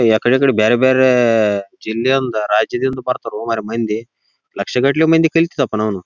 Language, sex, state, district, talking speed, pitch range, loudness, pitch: Kannada, male, Karnataka, Raichur, 60 wpm, 110-130 Hz, -16 LUFS, 120 Hz